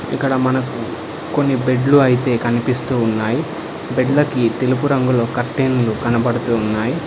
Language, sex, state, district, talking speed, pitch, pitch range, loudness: Telugu, male, Telangana, Hyderabad, 110 wpm, 125 Hz, 120-135 Hz, -17 LUFS